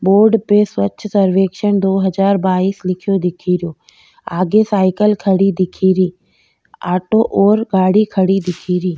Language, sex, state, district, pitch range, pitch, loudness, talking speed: Rajasthani, female, Rajasthan, Nagaur, 185-205 Hz, 190 Hz, -15 LUFS, 120 wpm